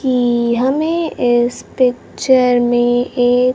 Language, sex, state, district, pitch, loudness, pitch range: Hindi, female, Bihar, Kaimur, 245 Hz, -15 LUFS, 240-260 Hz